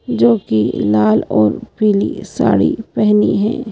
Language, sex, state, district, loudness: Hindi, female, Madhya Pradesh, Bhopal, -15 LUFS